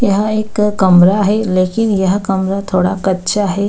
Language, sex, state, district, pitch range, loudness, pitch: Hindi, female, Bihar, Gaya, 190-210 Hz, -13 LUFS, 195 Hz